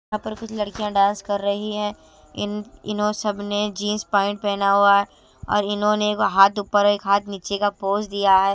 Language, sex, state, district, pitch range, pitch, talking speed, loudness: Hindi, female, Himachal Pradesh, Shimla, 200-210 Hz, 205 Hz, 205 wpm, -21 LUFS